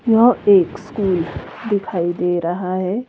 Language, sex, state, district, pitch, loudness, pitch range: Hindi, female, Himachal Pradesh, Shimla, 185 Hz, -18 LUFS, 175-215 Hz